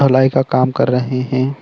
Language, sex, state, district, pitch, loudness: Hindi, male, Arunachal Pradesh, Lower Dibang Valley, 130 Hz, -15 LUFS